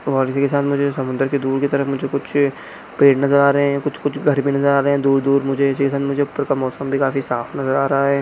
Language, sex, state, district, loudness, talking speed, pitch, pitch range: Hindi, male, Bihar, Saran, -18 LUFS, 270 wpm, 140 Hz, 135-140 Hz